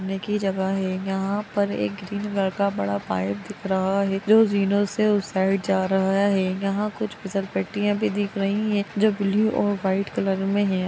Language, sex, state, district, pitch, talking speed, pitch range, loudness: Magahi, female, Bihar, Gaya, 195 Hz, 200 wpm, 190-205 Hz, -23 LUFS